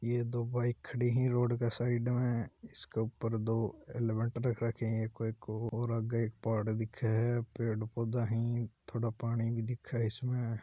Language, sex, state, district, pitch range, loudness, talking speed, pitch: Hindi, male, Rajasthan, Churu, 115-120 Hz, -35 LUFS, 175 wpm, 115 Hz